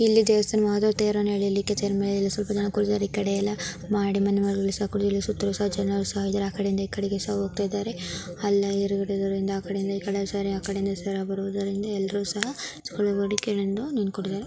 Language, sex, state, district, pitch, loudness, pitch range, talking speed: Kannada, female, Karnataka, Belgaum, 200 Hz, -26 LUFS, 195-205 Hz, 50 wpm